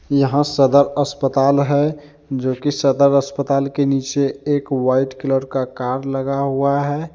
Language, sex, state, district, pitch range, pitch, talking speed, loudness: Hindi, male, Jharkhand, Deoghar, 135-145 Hz, 140 Hz, 140 wpm, -18 LUFS